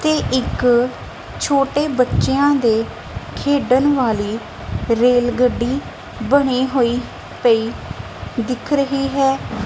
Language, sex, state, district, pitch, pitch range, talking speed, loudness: Punjabi, female, Punjab, Kapurthala, 255 Hz, 240-275 Hz, 85 wpm, -18 LUFS